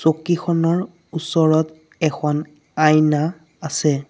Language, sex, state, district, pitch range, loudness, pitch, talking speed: Assamese, male, Assam, Sonitpur, 155-165 Hz, -19 LUFS, 155 Hz, 75 wpm